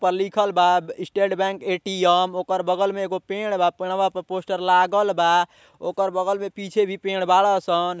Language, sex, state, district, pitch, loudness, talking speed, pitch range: Bhojpuri, male, Uttar Pradesh, Ghazipur, 185 Hz, -22 LUFS, 185 wpm, 180-195 Hz